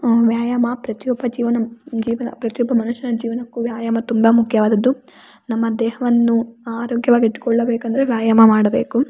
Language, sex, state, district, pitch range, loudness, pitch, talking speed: Kannada, female, Karnataka, Raichur, 230-240 Hz, -18 LUFS, 235 Hz, 120 wpm